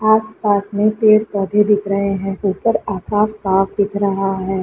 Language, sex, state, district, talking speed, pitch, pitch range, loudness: Hindi, female, Chhattisgarh, Sukma, 155 wpm, 200 Hz, 195-215 Hz, -17 LUFS